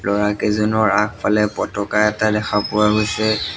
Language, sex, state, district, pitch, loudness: Assamese, male, Assam, Sonitpur, 105 Hz, -18 LUFS